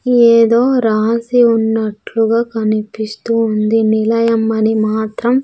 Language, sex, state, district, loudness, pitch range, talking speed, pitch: Telugu, female, Andhra Pradesh, Sri Satya Sai, -14 LUFS, 220-230 Hz, 90 wpm, 225 Hz